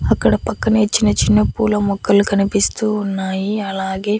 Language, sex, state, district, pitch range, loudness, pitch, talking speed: Telugu, female, Andhra Pradesh, Annamaya, 190-210 Hz, -17 LUFS, 200 Hz, 130 wpm